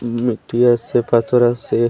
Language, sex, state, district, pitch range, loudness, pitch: Bengali, male, Assam, Hailakandi, 115-120 Hz, -17 LUFS, 120 Hz